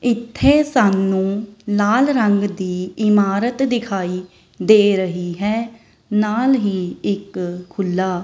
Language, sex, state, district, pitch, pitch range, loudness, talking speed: Punjabi, female, Punjab, Kapurthala, 205 Hz, 190-230 Hz, -18 LUFS, 110 wpm